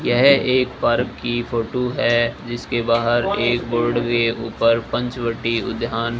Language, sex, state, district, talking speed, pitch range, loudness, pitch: Hindi, male, Rajasthan, Bikaner, 145 wpm, 115-120 Hz, -20 LUFS, 120 Hz